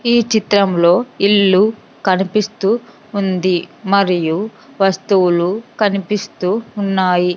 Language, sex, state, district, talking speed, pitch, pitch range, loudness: Telugu, female, Andhra Pradesh, Sri Satya Sai, 75 wpm, 200 Hz, 185-215 Hz, -16 LUFS